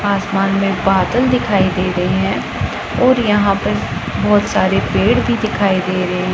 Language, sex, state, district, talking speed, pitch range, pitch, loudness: Hindi, female, Punjab, Pathankot, 160 wpm, 185-205 Hz, 195 Hz, -15 LUFS